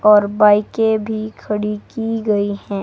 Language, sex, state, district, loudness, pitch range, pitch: Hindi, female, Himachal Pradesh, Shimla, -17 LUFS, 205-220 Hz, 210 Hz